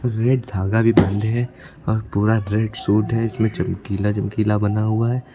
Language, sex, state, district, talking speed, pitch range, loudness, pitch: Hindi, male, Uttar Pradesh, Lucknow, 180 wpm, 105-115 Hz, -20 LUFS, 110 Hz